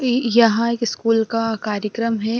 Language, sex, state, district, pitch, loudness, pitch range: Hindi, female, Bihar, Sitamarhi, 230 Hz, -19 LUFS, 225-235 Hz